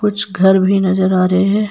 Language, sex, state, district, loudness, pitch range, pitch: Hindi, female, Jharkhand, Ranchi, -13 LUFS, 185-205 Hz, 190 Hz